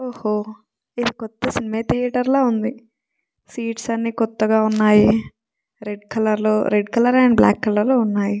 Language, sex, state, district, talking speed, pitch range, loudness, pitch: Telugu, female, Telangana, Nalgonda, 170 wpm, 215-240 Hz, -19 LUFS, 225 Hz